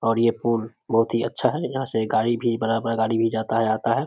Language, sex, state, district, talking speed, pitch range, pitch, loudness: Hindi, male, Bihar, Samastipur, 265 wpm, 115-120 Hz, 115 Hz, -23 LUFS